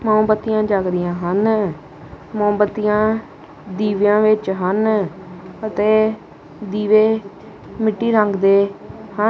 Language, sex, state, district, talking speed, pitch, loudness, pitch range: Punjabi, male, Punjab, Kapurthala, 90 wpm, 210 Hz, -18 LUFS, 190-215 Hz